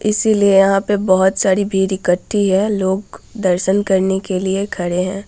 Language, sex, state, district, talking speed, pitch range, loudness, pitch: Hindi, female, Bihar, Vaishali, 170 wpm, 190-200 Hz, -16 LUFS, 190 Hz